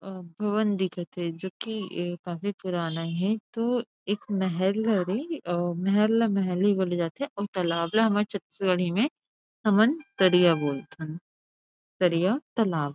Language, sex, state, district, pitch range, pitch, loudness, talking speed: Chhattisgarhi, female, Chhattisgarh, Rajnandgaon, 175-215 Hz, 190 Hz, -27 LUFS, 150 wpm